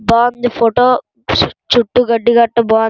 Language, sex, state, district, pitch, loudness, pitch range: Telugu, female, Andhra Pradesh, Srikakulam, 235 Hz, -13 LUFS, 230-245 Hz